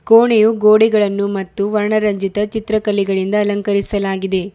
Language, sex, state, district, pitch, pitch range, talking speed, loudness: Kannada, female, Karnataka, Bidar, 205 Hz, 200-215 Hz, 90 wpm, -15 LUFS